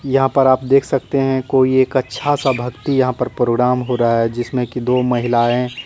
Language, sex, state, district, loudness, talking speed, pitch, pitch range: Hindi, male, Bihar, Katihar, -16 LUFS, 215 wpm, 125 Hz, 125-135 Hz